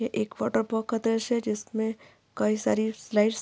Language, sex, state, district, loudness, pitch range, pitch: Hindi, female, Maharashtra, Aurangabad, -28 LUFS, 210-225 Hz, 220 Hz